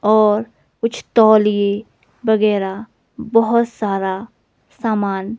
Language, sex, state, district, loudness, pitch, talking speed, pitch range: Hindi, female, Himachal Pradesh, Shimla, -17 LUFS, 215 Hz, 80 wpm, 200-230 Hz